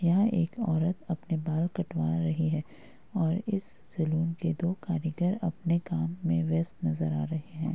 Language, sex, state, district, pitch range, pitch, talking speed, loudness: Hindi, female, Uttar Pradesh, Muzaffarnagar, 155-175 Hz, 165 Hz, 170 wpm, -30 LUFS